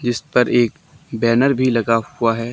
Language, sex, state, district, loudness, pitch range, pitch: Hindi, male, Haryana, Charkhi Dadri, -17 LUFS, 115-130 Hz, 120 Hz